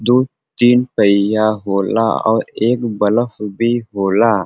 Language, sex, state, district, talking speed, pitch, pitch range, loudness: Bhojpuri, male, Uttar Pradesh, Varanasi, 120 wpm, 110 Hz, 105-120 Hz, -15 LUFS